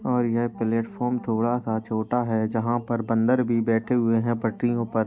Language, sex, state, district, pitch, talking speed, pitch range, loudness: Hindi, male, Uttar Pradesh, Jalaun, 115 Hz, 190 wpm, 115-120 Hz, -24 LUFS